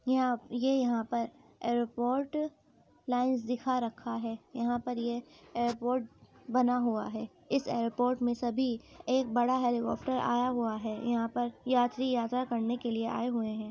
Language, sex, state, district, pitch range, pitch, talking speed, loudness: Hindi, female, Uttar Pradesh, Muzaffarnagar, 235-255 Hz, 245 Hz, 180 wpm, -32 LUFS